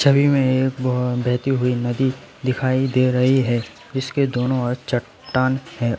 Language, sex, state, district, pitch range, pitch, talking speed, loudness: Hindi, male, West Bengal, Alipurduar, 125-130 Hz, 130 Hz, 170 wpm, -20 LUFS